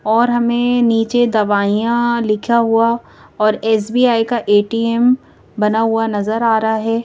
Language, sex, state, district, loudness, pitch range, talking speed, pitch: Hindi, female, Madhya Pradesh, Bhopal, -15 LUFS, 215-235 Hz, 135 wpm, 225 Hz